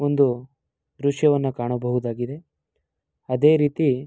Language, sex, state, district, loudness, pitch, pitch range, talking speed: Kannada, male, Karnataka, Mysore, -22 LUFS, 135 Hz, 125-145 Hz, 75 wpm